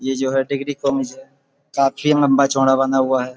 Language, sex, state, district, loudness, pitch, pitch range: Hindi, male, Uttar Pradesh, Budaun, -18 LUFS, 135 Hz, 135-140 Hz